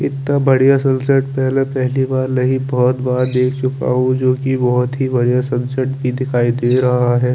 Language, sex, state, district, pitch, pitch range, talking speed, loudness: Hindi, male, Chandigarh, Chandigarh, 130 Hz, 125-130 Hz, 180 wpm, -16 LUFS